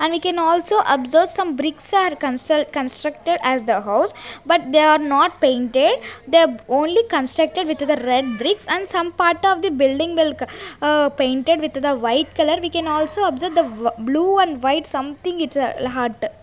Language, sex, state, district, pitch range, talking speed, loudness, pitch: English, female, Punjab, Kapurthala, 275-345 Hz, 185 wpm, -19 LUFS, 310 Hz